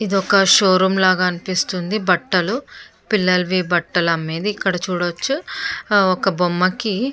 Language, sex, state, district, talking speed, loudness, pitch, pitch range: Telugu, female, Andhra Pradesh, Chittoor, 120 wpm, -18 LUFS, 185 Hz, 180-205 Hz